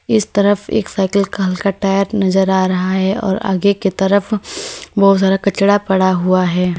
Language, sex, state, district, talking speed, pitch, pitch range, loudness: Hindi, female, Uttar Pradesh, Lalitpur, 185 wpm, 195 Hz, 190-200 Hz, -15 LUFS